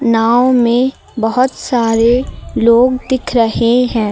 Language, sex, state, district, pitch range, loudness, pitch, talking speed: Hindi, female, Uttar Pradesh, Lucknow, 230-255 Hz, -13 LUFS, 240 Hz, 115 wpm